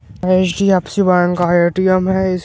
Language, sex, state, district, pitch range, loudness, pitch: Hindi, male, Bihar, Vaishali, 175-190 Hz, -14 LUFS, 185 Hz